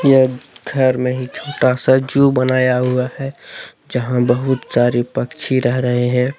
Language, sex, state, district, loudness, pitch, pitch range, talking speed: Hindi, male, Jharkhand, Deoghar, -16 LUFS, 130 Hz, 125-130 Hz, 160 wpm